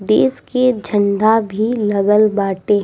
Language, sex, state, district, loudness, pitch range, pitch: Bhojpuri, female, Bihar, East Champaran, -15 LUFS, 200-220 Hz, 210 Hz